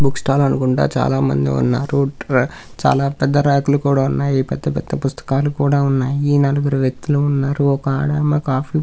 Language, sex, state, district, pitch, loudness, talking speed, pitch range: Telugu, male, Andhra Pradesh, Krishna, 140 Hz, -17 LUFS, 165 wpm, 135-145 Hz